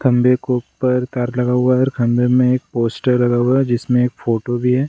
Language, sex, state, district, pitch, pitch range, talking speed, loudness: Hindi, male, Bihar, Gaya, 125 Hz, 120-125 Hz, 245 wpm, -17 LUFS